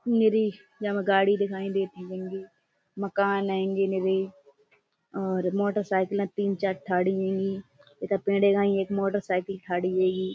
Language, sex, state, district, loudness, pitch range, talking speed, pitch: Hindi, female, Uttar Pradesh, Budaun, -27 LUFS, 185-200 Hz, 120 wpm, 195 Hz